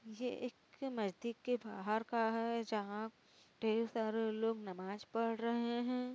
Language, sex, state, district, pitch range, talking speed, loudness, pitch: Hindi, female, Uttar Pradesh, Varanasi, 220-235 Hz, 155 wpm, -40 LUFS, 225 Hz